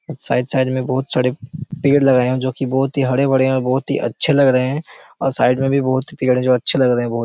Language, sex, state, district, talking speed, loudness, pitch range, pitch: Hindi, male, Chhattisgarh, Raigarh, 280 wpm, -17 LUFS, 125-140 Hz, 130 Hz